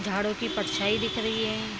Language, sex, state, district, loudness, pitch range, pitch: Hindi, female, Bihar, Araria, -27 LUFS, 205-220 Hz, 220 Hz